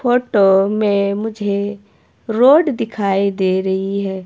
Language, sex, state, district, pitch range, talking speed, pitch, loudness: Hindi, female, Himachal Pradesh, Shimla, 195-225 Hz, 115 wpm, 200 Hz, -16 LUFS